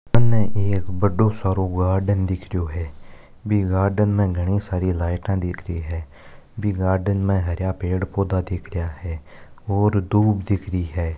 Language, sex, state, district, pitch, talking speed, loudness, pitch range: Marwari, male, Rajasthan, Nagaur, 95 Hz, 165 wpm, -22 LUFS, 90-100 Hz